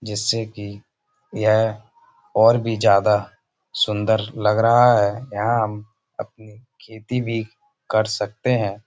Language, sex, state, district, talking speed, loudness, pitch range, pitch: Hindi, male, Uttar Pradesh, Budaun, 120 wpm, -20 LUFS, 105-120 Hz, 110 Hz